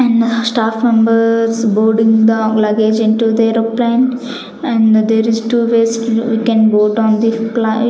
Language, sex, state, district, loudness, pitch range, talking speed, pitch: English, female, Chandigarh, Chandigarh, -13 LUFS, 220-230 Hz, 150 wpm, 225 Hz